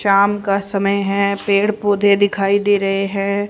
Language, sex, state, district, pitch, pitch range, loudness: Hindi, female, Haryana, Charkhi Dadri, 200 Hz, 195-205 Hz, -16 LUFS